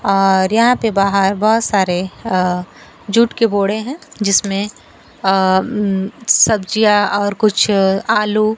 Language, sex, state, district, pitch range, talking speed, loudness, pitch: Hindi, female, Bihar, Kaimur, 195-220 Hz, 125 wpm, -15 LUFS, 205 Hz